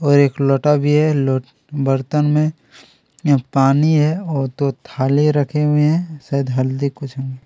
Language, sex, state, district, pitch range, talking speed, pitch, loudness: Hindi, male, Chhattisgarh, Kabirdham, 135-150 Hz, 160 wpm, 145 Hz, -17 LUFS